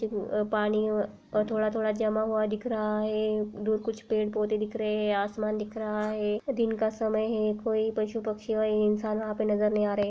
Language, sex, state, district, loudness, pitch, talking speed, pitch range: Hindi, female, Uttar Pradesh, Jalaun, -29 LUFS, 215 Hz, 215 wpm, 210-220 Hz